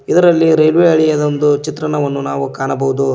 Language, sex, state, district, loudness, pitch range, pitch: Kannada, male, Karnataka, Koppal, -13 LUFS, 140-160 Hz, 150 Hz